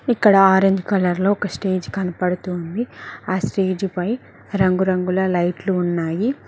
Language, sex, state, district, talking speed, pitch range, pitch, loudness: Telugu, female, Telangana, Mahabubabad, 120 wpm, 180-195 Hz, 190 Hz, -20 LUFS